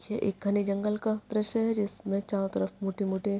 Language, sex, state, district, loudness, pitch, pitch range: Hindi, female, Maharashtra, Aurangabad, -30 LUFS, 205 Hz, 195-215 Hz